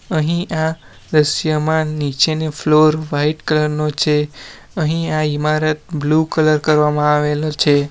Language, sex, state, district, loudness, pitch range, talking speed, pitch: Gujarati, male, Gujarat, Valsad, -17 LUFS, 150-155 Hz, 130 wpm, 155 Hz